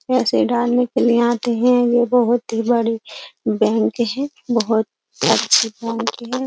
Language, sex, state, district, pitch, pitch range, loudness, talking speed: Hindi, female, Uttar Pradesh, Jyotiba Phule Nagar, 240 Hz, 230-245 Hz, -18 LUFS, 150 wpm